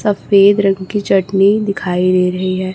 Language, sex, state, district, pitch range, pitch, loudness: Hindi, female, Chhattisgarh, Raipur, 185-200 Hz, 195 Hz, -13 LUFS